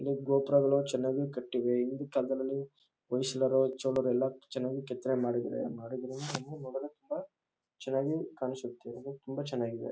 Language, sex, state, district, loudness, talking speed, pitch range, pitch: Kannada, male, Karnataka, Chamarajanagar, -33 LUFS, 110 wpm, 125-140 Hz, 130 Hz